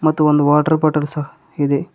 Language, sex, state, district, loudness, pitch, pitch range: Kannada, male, Karnataka, Koppal, -16 LUFS, 150 Hz, 145-155 Hz